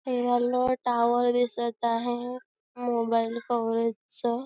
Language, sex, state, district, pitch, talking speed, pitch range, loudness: Marathi, female, Maharashtra, Chandrapur, 240 Hz, 105 wpm, 235-245 Hz, -27 LUFS